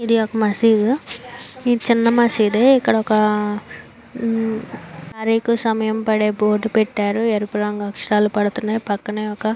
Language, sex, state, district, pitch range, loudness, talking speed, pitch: Telugu, female, Andhra Pradesh, Anantapur, 210-230 Hz, -18 LUFS, 125 wpm, 220 Hz